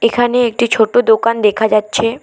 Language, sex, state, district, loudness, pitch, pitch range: Bengali, female, West Bengal, Alipurduar, -13 LUFS, 230 Hz, 220-240 Hz